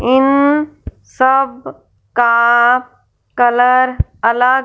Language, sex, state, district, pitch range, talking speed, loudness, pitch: Hindi, female, Punjab, Fazilka, 240-265 Hz, 65 wpm, -13 LUFS, 255 Hz